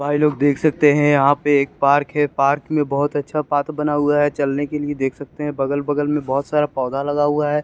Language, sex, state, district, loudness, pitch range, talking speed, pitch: Hindi, male, Chandigarh, Chandigarh, -19 LUFS, 140-150 Hz, 260 wpm, 145 Hz